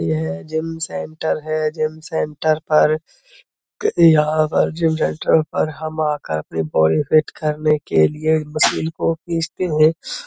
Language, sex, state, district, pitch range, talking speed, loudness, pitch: Hindi, male, Uttar Pradesh, Budaun, 150-160 Hz, 145 wpm, -19 LUFS, 155 Hz